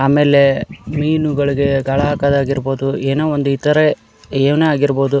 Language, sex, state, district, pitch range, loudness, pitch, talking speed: Kannada, male, Karnataka, Dharwad, 135-150 Hz, -15 LUFS, 140 Hz, 125 wpm